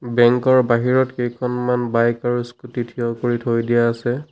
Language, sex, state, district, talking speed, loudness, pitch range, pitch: Assamese, male, Assam, Sonitpur, 165 wpm, -19 LUFS, 120-125 Hz, 120 Hz